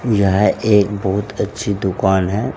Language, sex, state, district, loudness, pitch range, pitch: Hindi, male, Uttar Pradesh, Saharanpur, -17 LUFS, 95-105 Hz, 100 Hz